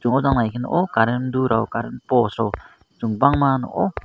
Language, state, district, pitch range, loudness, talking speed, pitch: Kokborok, Tripura, Dhalai, 115-135 Hz, -20 LUFS, 205 wpm, 125 Hz